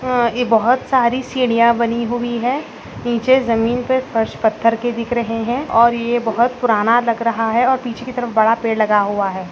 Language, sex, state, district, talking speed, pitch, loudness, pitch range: Hindi, female, Maharashtra, Solapur, 210 wpm, 235 Hz, -17 LUFS, 225-245 Hz